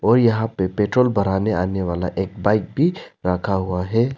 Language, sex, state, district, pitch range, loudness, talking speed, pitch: Hindi, male, Arunachal Pradesh, Lower Dibang Valley, 95-115 Hz, -20 LUFS, 185 wpm, 100 Hz